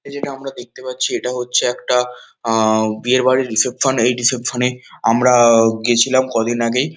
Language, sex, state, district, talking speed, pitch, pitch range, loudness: Bengali, male, West Bengal, North 24 Parganas, 155 wpm, 125 Hz, 115-130 Hz, -16 LUFS